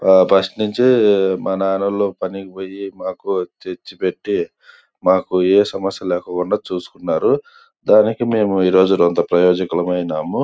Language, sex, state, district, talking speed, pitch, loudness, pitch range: Telugu, male, Andhra Pradesh, Anantapur, 115 wpm, 95 Hz, -17 LUFS, 95-105 Hz